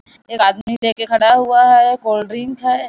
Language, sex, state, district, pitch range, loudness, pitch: Hindi, female, Chhattisgarh, Bilaspur, 225-250 Hz, -13 LUFS, 240 Hz